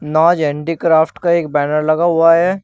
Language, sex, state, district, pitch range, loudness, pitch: Hindi, male, Uttar Pradesh, Shamli, 155-170 Hz, -14 LUFS, 165 Hz